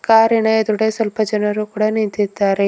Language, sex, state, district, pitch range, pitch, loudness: Kannada, female, Karnataka, Bidar, 210-220 Hz, 215 Hz, -17 LUFS